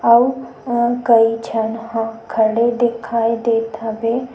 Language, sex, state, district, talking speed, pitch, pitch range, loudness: Chhattisgarhi, female, Chhattisgarh, Sukma, 125 wpm, 230 Hz, 225-240 Hz, -17 LUFS